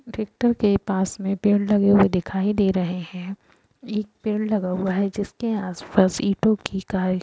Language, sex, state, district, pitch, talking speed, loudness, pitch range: Hindi, female, Bihar, Saran, 200 Hz, 175 wpm, -22 LUFS, 190-210 Hz